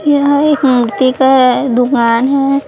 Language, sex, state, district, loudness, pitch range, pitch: Hindi, female, Chhattisgarh, Raipur, -11 LUFS, 250-280 Hz, 265 Hz